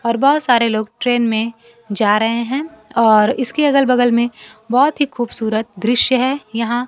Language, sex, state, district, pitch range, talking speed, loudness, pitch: Hindi, female, Bihar, Kaimur, 225-260 Hz, 175 wpm, -16 LUFS, 235 Hz